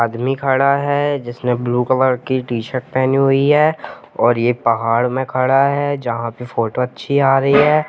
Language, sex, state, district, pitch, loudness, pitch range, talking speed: Hindi, male, Jharkhand, Jamtara, 130 Hz, -16 LUFS, 120-140 Hz, 175 wpm